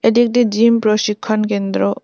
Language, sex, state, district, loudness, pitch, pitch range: Bengali, female, West Bengal, Cooch Behar, -15 LUFS, 215 Hz, 210-230 Hz